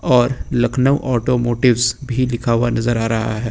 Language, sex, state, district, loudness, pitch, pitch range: Hindi, male, Uttar Pradesh, Lucknow, -17 LUFS, 120 Hz, 115-125 Hz